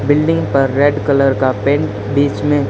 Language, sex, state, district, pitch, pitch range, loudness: Hindi, male, Haryana, Charkhi Dadri, 140 Hz, 130-145 Hz, -14 LUFS